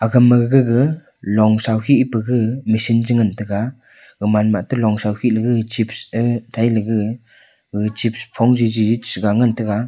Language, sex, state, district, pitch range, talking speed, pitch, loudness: Wancho, male, Arunachal Pradesh, Longding, 110-120 Hz, 160 wpm, 115 Hz, -17 LUFS